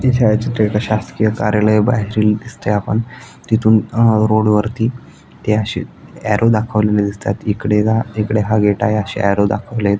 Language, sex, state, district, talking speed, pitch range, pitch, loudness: Marathi, male, Maharashtra, Aurangabad, 170 wpm, 105-110 Hz, 110 Hz, -16 LUFS